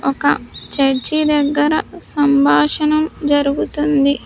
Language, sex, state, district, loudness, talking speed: Telugu, female, Andhra Pradesh, Sri Satya Sai, -16 LUFS, 70 wpm